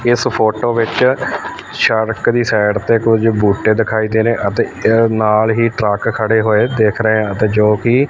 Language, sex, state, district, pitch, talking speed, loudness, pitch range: Punjabi, male, Punjab, Fazilka, 110 Hz, 170 wpm, -14 LUFS, 110-115 Hz